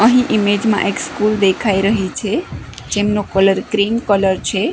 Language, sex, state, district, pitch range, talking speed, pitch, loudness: Gujarati, female, Gujarat, Gandhinagar, 195-220 Hz, 165 wpm, 205 Hz, -16 LUFS